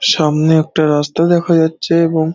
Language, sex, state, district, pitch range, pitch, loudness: Bengali, male, West Bengal, Dakshin Dinajpur, 155-165 Hz, 160 Hz, -13 LUFS